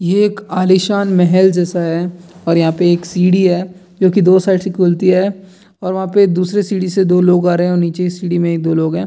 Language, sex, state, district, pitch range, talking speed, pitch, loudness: Hindi, male, Bihar, Jamui, 175-190 Hz, 260 wpm, 180 Hz, -13 LUFS